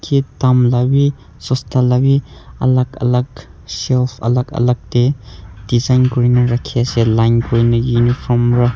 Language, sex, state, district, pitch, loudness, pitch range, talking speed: Nagamese, male, Nagaland, Kohima, 125 Hz, -15 LUFS, 120-130 Hz, 135 wpm